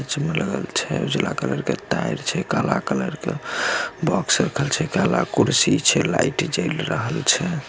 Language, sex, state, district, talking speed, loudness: Maithili, male, Bihar, Samastipur, 165 wpm, -21 LUFS